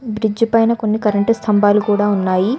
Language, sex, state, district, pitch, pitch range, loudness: Telugu, female, Telangana, Hyderabad, 215 Hz, 205-225 Hz, -15 LUFS